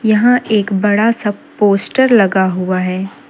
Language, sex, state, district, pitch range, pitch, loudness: Hindi, female, Jharkhand, Deoghar, 190-230 Hz, 205 Hz, -13 LUFS